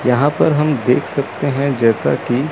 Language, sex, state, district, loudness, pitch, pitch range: Hindi, male, Chandigarh, Chandigarh, -16 LUFS, 140 Hz, 125-145 Hz